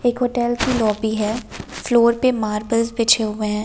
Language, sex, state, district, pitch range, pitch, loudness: Hindi, female, Delhi, New Delhi, 215-240 Hz, 230 Hz, -19 LUFS